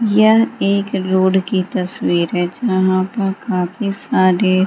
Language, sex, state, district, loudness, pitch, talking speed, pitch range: Hindi, female, Bihar, Gaya, -16 LUFS, 190 Hz, 140 wpm, 185-205 Hz